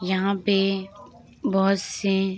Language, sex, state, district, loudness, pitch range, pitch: Hindi, female, Bihar, Saharsa, -24 LUFS, 190-200 Hz, 195 Hz